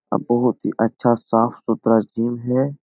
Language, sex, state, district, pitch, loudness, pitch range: Hindi, male, Bihar, Jahanabad, 120 Hz, -20 LUFS, 115-125 Hz